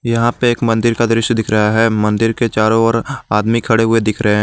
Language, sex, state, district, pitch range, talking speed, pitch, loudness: Hindi, male, Jharkhand, Garhwa, 110-115 Hz, 255 wpm, 115 Hz, -14 LUFS